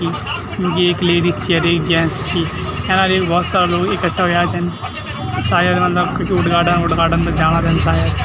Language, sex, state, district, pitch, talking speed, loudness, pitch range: Garhwali, male, Uttarakhand, Tehri Garhwal, 170 Hz, 175 wpm, -16 LUFS, 160-180 Hz